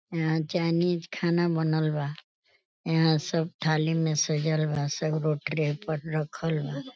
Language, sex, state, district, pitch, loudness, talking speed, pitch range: Bhojpuri, female, Uttar Pradesh, Deoria, 155 Hz, -27 LUFS, 140 wpm, 155-165 Hz